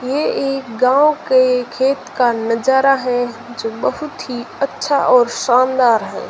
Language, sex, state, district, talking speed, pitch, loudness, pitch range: Hindi, female, Rajasthan, Jaisalmer, 145 wpm, 255 Hz, -16 LUFS, 240-270 Hz